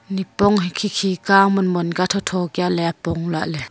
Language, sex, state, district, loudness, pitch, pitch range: Wancho, female, Arunachal Pradesh, Longding, -19 LUFS, 180 Hz, 170-195 Hz